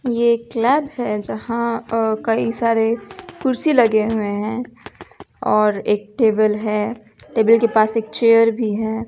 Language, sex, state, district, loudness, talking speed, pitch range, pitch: Hindi, female, Bihar, West Champaran, -18 LUFS, 140 wpm, 215-235 Hz, 225 Hz